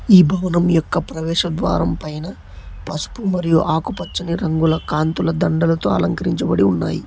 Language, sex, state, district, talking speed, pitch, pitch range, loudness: Telugu, male, Telangana, Hyderabad, 120 wpm, 165 Hz, 155-175 Hz, -18 LUFS